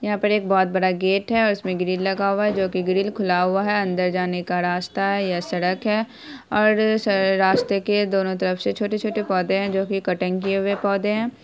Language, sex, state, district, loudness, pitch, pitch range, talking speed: Hindi, female, Bihar, Saharsa, -21 LUFS, 195 Hz, 185-210 Hz, 230 wpm